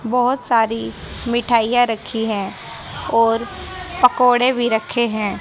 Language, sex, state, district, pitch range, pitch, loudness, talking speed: Hindi, female, Haryana, Jhajjar, 225-245 Hz, 235 Hz, -18 LUFS, 110 wpm